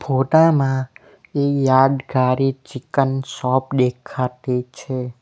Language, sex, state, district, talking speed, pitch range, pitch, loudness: Gujarati, male, Gujarat, Valsad, 90 wpm, 125-135 Hz, 130 Hz, -19 LUFS